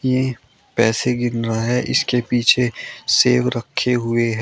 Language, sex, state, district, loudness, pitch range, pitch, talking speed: Hindi, male, Uttar Pradesh, Shamli, -18 LUFS, 115-125 Hz, 120 Hz, 150 wpm